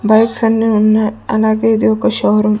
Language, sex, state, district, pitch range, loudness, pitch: Telugu, female, Andhra Pradesh, Sri Satya Sai, 210-225 Hz, -13 LUFS, 220 Hz